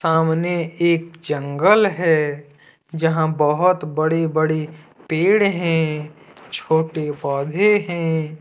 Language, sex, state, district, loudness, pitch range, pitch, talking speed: Hindi, male, Jharkhand, Deoghar, -19 LUFS, 155-170 Hz, 160 Hz, 95 wpm